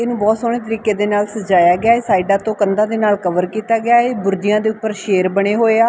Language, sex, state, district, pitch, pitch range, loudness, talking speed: Punjabi, female, Punjab, Fazilka, 215 Hz, 200-225 Hz, -16 LUFS, 255 wpm